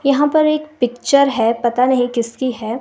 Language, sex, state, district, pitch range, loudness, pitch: Hindi, female, Himachal Pradesh, Shimla, 235-280 Hz, -16 LUFS, 250 Hz